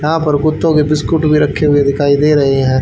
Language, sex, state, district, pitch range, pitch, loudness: Hindi, male, Haryana, Charkhi Dadri, 140-155 Hz, 150 Hz, -12 LUFS